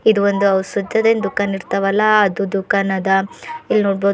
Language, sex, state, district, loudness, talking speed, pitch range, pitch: Kannada, female, Karnataka, Bidar, -17 LUFS, 115 wpm, 195-215 Hz, 200 Hz